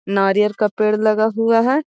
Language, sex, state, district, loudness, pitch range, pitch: Magahi, female, Bihar, Gaya, -17 LUFS, 210-230 Hz, 215 Hz